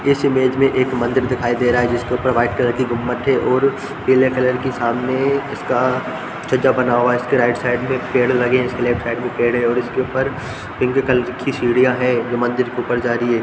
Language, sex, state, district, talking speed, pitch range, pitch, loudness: Hindi, male, Bihar, Darbhanga, 230 wpm, 120-130 Hz, 125 Hz, -18 LUFS